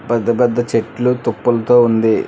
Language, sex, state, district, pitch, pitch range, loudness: Telugu, male, Telangana, Hyderabad, 120 Hz, 115-120 Hz, -15 LUFS